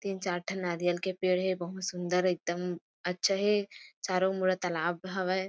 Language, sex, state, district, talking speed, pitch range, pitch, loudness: Chhattisgarhi, female, Chhattisgarh, Kabirdham, 165 wpm, 175-190 Hz, 185 Hz, -31 LUFS